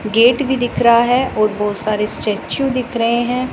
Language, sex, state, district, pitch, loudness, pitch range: Hindi, female, Punjab, Pathankot, 235 Hz, -16 LUFS, 215-250 Hz